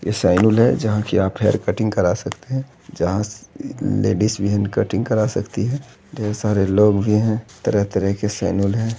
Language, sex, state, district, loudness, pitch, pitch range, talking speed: Hindi, male, Bihar, Begusarai, -19 LUFS, 105 Hz, 100-110 Hz, 185 wpm